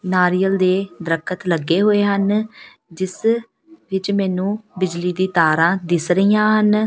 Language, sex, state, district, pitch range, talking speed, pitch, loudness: Punjabi, female, Punjab, Pathankot, 180-210 Hz, 130 wpm, 190 Hz, -18 LUFS